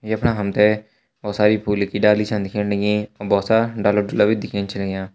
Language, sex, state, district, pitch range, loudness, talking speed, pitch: Hindi, male, Uttarakhand, Tehri Garhwal, 100-105 Hz, -19 LUFS, 235 wpm, 105 Hz